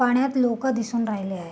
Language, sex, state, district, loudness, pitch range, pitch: Marathi, female, Maharashtra, Sindhudurg, -24 LUFS, 215-250 Hz, 235 Hz